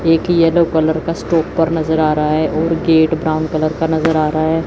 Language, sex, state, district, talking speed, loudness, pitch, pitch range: Hindi, female, Chandigarh, Chandigarh, 230 wpm, -15 LUFS, 160 Hz, 155-165 Hz